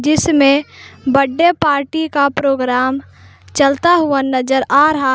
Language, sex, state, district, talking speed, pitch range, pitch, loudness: Hindi, female, Jharkhand, Palamu, 115 wpm, 270-305 Hz, 280 Hz, -14 LUFS